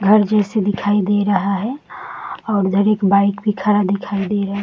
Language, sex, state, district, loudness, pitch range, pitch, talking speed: Hindi, female, Bihar, Saharsa, -17 LUFS, 200-210 Hz, 205 Hz, 210 wpm